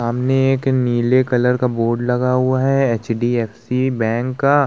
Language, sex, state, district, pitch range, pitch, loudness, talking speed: Hindi, male, Uttar Pradesh, Muzaffarnagar, 120-130 Hz, 125 Hz, -17 LUFS, 155 wpm